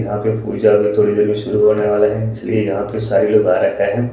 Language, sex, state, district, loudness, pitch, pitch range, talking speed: Hindi, male, Bihar, Kaimur, -16 LUFS, 105 Hz, 105-110 Hz, 160 wpm